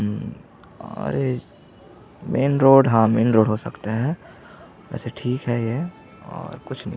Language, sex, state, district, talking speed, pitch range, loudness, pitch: Hindi, male, Chhattisgarh, Jashpur, 145 wpm, 115-135 Hz, -21 LUFS, 120 Hz